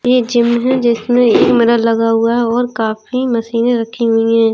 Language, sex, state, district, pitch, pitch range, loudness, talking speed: Hindi, female, Uttar Pradesh, Jalaun, 235 Hz, 230-240 Hz, -13 LUFS, 185 wpm